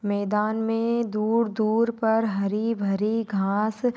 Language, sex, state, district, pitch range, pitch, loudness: Hindi, female, Jharkhand, Sahebganj, 210-230 Hz, 220 Hz, -24 LUFS